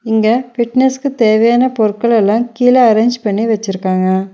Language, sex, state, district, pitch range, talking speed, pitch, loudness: Tamil, female, Tamil Nadu, Nilgiris, 215-245 Hz, 125 wpm, 225 Hz, -13 LUFS